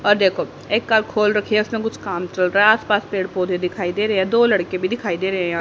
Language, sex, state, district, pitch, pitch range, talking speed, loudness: Hindi, female, Haryana, Rohtak, 200 Hz, 185-215 Hz, 320 wpm, -19 LUFS